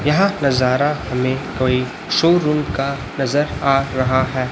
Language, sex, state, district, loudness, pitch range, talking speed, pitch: Hindi, male, Chhattisgarh, Raipur, -18 LUFS, 130-145 Hz, 135 wpm, 135 Hz